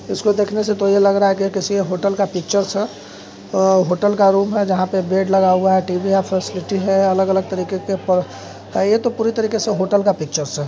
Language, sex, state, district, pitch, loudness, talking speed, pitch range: Hindi, male, Jharkhand, Sahebganj, 195 Hz, -17 LUFS, 240 wpm, 185-200 Hz